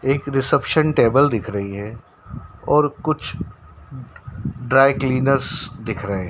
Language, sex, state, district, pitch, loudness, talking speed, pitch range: Hindi, male, Madhya Pradesh, Dhar, 130 Hz, -19 LUFS, 115 wpm, 100-140 Hz